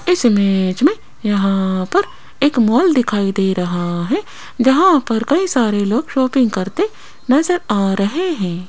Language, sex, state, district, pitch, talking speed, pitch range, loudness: Hindi, female, Rajasthan, Jaipur, 235 Hz, 150 wpm, 195-300 Hz, -16 LUFS